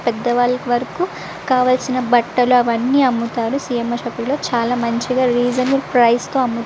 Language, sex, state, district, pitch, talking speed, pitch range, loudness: Telugu, female, Andhra Pradesh, Visakhapatnam, 245 Hz, 135 wpm, 235-255 Hz, -17 LUFS